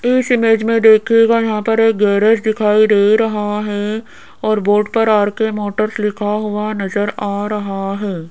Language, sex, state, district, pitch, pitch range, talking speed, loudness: Hindi, female, Rajasthan, Jaipur, 215 Hz, 205-225 Hz, 165 wpm, -15 LUFS